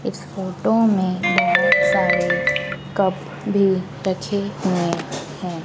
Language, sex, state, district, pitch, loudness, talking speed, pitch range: Hindi, female, Madhya Pradesh, Dhar, 185 Hz, -20 LUFS, 105 wpm, 175-195 Hz